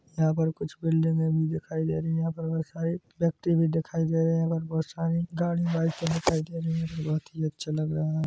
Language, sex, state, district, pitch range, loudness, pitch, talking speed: Hindi, male, Chhattisgarh, Bilaspur, 160-165 Hz, -28 LUFS, 160 Hz, 245 wpm